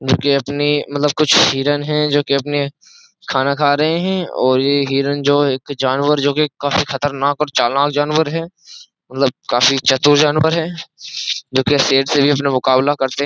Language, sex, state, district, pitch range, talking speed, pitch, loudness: Hindi, male, Uttar Pradesh, Jyotiba Phule Nagar, 135-150 Hz, 190 wpm, 145 Hz, -16 LUFS